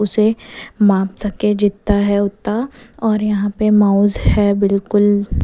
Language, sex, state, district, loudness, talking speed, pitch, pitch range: Hindi, female, Bihar, West Champaran, -16 LUFS, 130 wpm, 205 Hz, 200-215 Hz